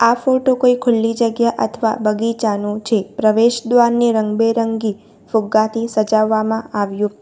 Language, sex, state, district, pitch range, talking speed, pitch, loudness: Gujarati, female, Gujarat, Valsad, 215-235 Hz, 115 wpm, 225 Hz, -16 LUFS